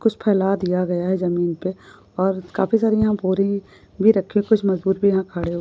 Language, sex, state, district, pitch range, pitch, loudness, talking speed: Hindi, female, Jharkhand, Jamtara, 180-205 Hz, 190 Hz, -20 LUFS, 215 wpm